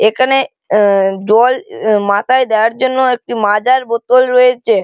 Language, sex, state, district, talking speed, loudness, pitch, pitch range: Bengali, male, West Bengal, Malda, 135 wpm, -12 LUFS, 235 Hz, 210-255 Hz